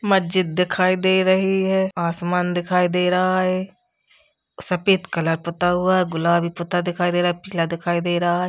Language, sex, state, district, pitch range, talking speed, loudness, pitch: Hindi, female, Uttar Pradesh, Jalaun, 175-185 Hz, 175 wpm, -20 LUFS, 180 Hz